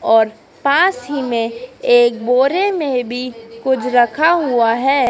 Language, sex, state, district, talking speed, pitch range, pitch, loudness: Hindi, female, Madhya Pradesh, Dhar, 140 wpm, 235-280 Hz, 250 Hz, -16 LUFS